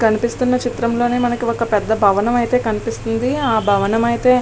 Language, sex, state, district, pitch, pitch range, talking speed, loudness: Telugu, female, Andhra Pradesh, Srikakulam, 235 Hz, 220-245 Hz, 150 wpm, -17 LUFS